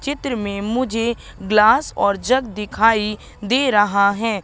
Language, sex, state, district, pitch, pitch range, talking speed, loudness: Hindi, female, Madhya Pradesh, Katni, 220 Hz, 205-240 Hz, 135 wpm, -18 LUFS